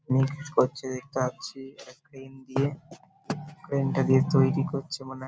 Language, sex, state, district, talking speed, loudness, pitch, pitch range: Bengali, male, West Bengal, Paschim Medinipur, 170 wpm, -27 LUFS, 135 Hz, 130-145 Hz